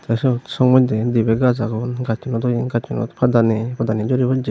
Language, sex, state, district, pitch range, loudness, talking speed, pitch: Chakma, male, Tripura, Unakoti, 115-125 Hz, -18 LUFS, 200 wpm, 120 Hz